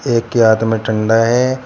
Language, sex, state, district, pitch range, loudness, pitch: Hindi, male, Uttar Pradesh, Shamli, 110-120 Hz, -14 LUFS, 115 Hz